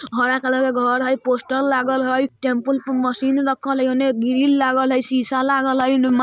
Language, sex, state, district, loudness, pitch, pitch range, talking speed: Bajjika, male, Bihar, Vaishali, -19 LUFS, 260 Hz, 255-265 Hz, 220 wpm